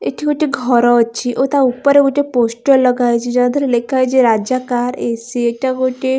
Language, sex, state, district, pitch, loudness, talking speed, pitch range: Odia, female, Odisha, Khordha, 250 Hz, -15 LUFS, 205 wpm, 240-265 Hz